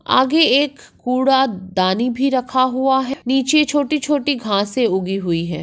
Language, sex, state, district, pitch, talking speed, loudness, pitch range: Hindi, female, Maharashtra, Nagpur, 260 Hz, 150 wpm, -17 LUFS, 205-275 Hz